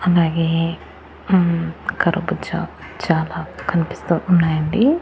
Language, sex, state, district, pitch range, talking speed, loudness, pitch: Telugu, female, Andhra Pradesh, Annamaya, 165-180 Hz, 85 wpm, -19 LUFS, 170 Hz